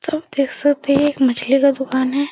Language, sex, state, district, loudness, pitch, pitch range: Hindi, female, Bihar, Supaul, -17 LUFS, 280 Hz, 265-290 Hz